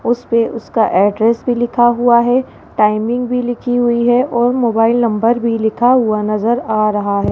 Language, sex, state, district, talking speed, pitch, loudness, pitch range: Hindi, female, Rajasthan, Jaipur, 180 wpm, 235 Hz, -14 LUFS, 220-245 Hz